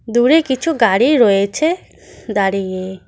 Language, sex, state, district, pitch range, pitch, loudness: Bengali, female, West Bengal, Cooch Behar, 195-280 Hz, 230 Hz, -15 LUFS